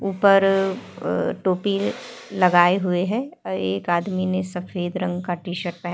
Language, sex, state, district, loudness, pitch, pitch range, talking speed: Hindi, female, Uttar Pradesh, Etah, -22 LUFS, 180 Hz, 175-195 Hz, 160 wpm